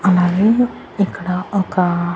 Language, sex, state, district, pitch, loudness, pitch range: Telugu, female, Andhra Pradesh, Annamaya, 185 Hz, -17 LUFS, 180-200 Hz